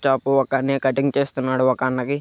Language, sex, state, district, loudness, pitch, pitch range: Telugu, male, Andhra Pradesh, Krishna, -20 LUFS, 135 Hz, 130-140 Hz